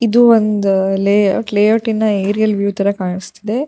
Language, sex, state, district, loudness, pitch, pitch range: Kannada, female, Karnataka, Shimoga, -14 LUFS, 205 Hz, 195-220 Hz